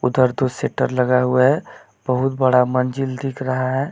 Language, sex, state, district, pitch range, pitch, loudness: Hindi, male, Jharkhand, Deoghar, 125-135 Hz, 130 Hz, -19 LUFS